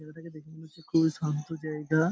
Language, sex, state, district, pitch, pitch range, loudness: Bengali, male, West Bengal, Paschim Medinipur, 160 Hz, 155-160 Hz, -29 LUFS